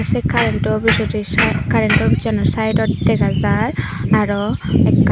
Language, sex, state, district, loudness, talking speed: Chakma, female, Tripura, Unakoti, -16 LUFS, 130 wpm